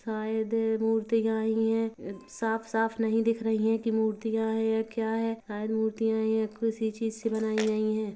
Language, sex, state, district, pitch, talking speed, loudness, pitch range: Hindi, female, Chhattisgarh, Kabirdham, 220 Hz, 185 wpm, -29 LUFS, 220-225 Hz